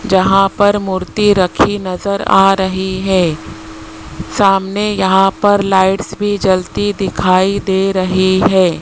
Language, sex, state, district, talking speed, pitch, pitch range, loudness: Hindi, male, Rajasthan, Jaipur, 120 wpm, 190 Hz, 185-200 Hz, -13 LUFS